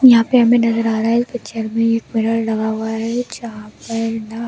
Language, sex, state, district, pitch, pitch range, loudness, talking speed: Hindi, female, Delhi, New Delhi, 230 Hz, 225-235 Hz, -17 LUFS, 225 wpm